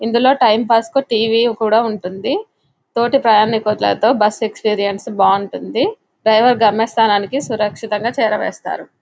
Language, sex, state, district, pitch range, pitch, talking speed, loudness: Telugu, female, Telangana, Nalgonda, 210-235 Hz, 225 Hz, 105 wpm, -16 LUFS